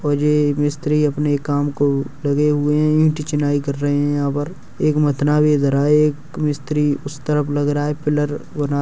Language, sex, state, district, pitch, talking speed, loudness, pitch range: Hindi, male, Uttar Pradesh, Hamirpur, 145 Hz, 210 wpm, -18 LUFS, 145-150 Hz